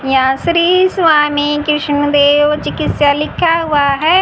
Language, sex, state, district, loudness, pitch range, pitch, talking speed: Hindi, female, Haryana, Jhajjar, -12 LUFS, 290-330 Hz, 295 Hz, 130 wpm